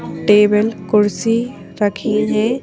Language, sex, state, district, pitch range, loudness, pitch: Hindi, female, Madhya Pradesh, Bhopal, 210-225 Hz, -16 LUFS, 215 Hz